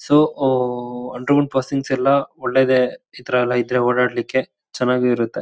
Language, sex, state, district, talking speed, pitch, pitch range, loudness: Kannada, male, Karnataka, Shimoga, 135 wpm, 125 Hz, 125-135 Hz, -19 LUFS